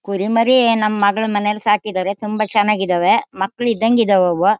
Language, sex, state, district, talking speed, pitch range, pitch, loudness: Kannada, female, Karnataka, Shimoga, 155 wpm, 200-225 Hz, 210 Hz, -16 LUFS